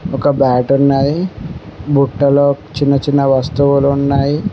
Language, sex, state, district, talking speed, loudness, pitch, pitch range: Telugu, male, Telangana, Mahabubabad, 105 wpm, -13 LUFS, 140 Hz, 135-145 Hz